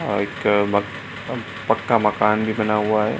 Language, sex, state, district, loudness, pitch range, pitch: Hindi, male, Bihar, Supaul, -20 LUFS, 100-110 Hz, 105 Hz